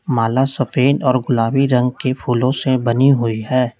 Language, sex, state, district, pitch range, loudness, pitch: Hindi, male, Uttar Pradesh, Lalitpur, 120-135 Hz, -16 LUFS, 130 Hz